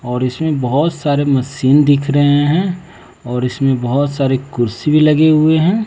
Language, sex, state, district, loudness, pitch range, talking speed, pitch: Hindi, male, Bihar, West Champaran, -14 LUFS, 130-155 Hz, 175 wpm, 145 Hz